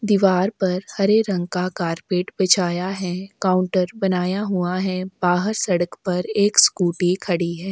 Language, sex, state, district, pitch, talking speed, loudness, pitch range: Hindi, female, Chhattisgarh, Korba, 185 Hz, 140 wpm, -20 LUFS, 180-195 Hz